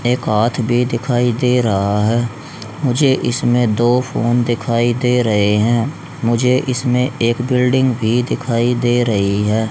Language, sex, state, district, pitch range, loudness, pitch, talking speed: Hindi, male, Haryana, Rohtak, 115-125 Hz, -16 LUFS, 120 Hz, 150 wpm